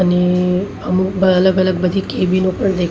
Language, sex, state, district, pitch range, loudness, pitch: Gujarati, female, Maharashtra, Mumbai Suburban, 180-190 Hz, -16 LUFS, 185 Hz